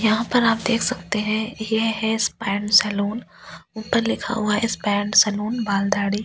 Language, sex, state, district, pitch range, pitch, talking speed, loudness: Hindi, female, Delhi, New Delhi, 205-225 Hz, 220 Hz, 180 wpm, -21 LUFS